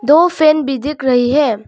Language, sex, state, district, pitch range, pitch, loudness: Hindi, female, Arunachal Pradesh, Longding, 265-305 Hz, 295 Hz, -13 LUFS